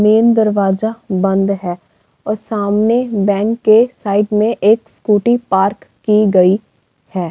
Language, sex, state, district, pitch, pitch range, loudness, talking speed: Hindi, female, Uttar Pradesh, Varanasi, 210 Hz, 195-220 Hz, -14 LUFS, 130 wpm